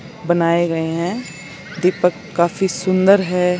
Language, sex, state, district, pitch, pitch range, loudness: Hindi, female, Chandigarh, Chandigarh, 180 Hz, 170-185 Hz, -17 LUFS